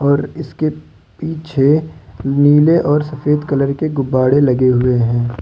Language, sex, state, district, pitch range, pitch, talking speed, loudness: Hindi, male, Uttar Pradesh, Lucknow, 130-150 Hz, 140 Hz, 135 wpm, -15 LUFS